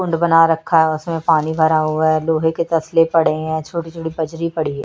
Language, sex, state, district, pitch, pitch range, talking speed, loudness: Hindi, female, Chhattisgarh, Raipur, 160 Hz, 160-165 Hz, 235 wpm, -17 LUFS